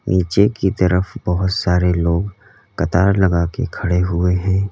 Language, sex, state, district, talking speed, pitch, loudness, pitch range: Hindi, male, Uttar Pradesh, Lalitpur, 150 wpm, 90 Hz, -17 LUFS, 90-95 Hz